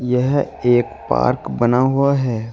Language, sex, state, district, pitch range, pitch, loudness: Hindi, male, Uttar Pradesh, Shamli, 120-135 Hz, 125 Hz, -17 LUFS